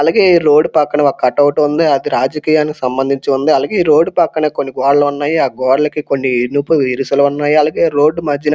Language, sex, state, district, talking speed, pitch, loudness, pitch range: Telugu, male, Andhra Pradesh, Srikakulam, 195 wpm, 145 Hz, -13 LUFS, 135-150 Hz